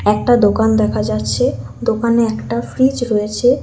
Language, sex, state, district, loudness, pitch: Bengali, female, West Bengal, Alipurduar, -16 LUFS, 210 Hz